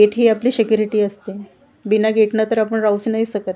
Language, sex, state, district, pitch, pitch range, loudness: Marathi, female, Maharashtra, Gondia, 215 Hz, 210-225 Hz, -17 LUFS